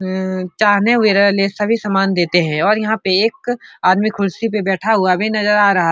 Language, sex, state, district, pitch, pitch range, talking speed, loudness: Hindi, female, Uttar Pradesh, Etah, 200 Hz, 185-215 Hz, 205 wpm, -15 LUFS